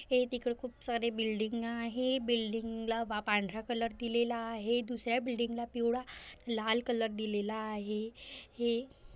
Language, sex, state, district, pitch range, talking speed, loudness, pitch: Marathi, female, Maharashtra, Aurangabad, 225-240 Hz, 145 wpm, -35 LUFS, 235 Hz